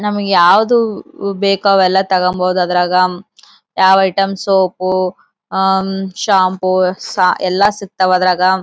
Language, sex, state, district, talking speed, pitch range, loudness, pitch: Kannada, female, Karnataka, Bellary, 105 wpm, 185-195 Hz, -13 LUFS, 190 Hz